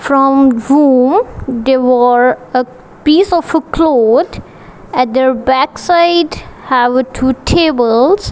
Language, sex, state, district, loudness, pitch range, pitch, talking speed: English, female, Punjab, Kapurthala, -11 LUFS, 250-320 Hz, 260 Hz, 110 wpm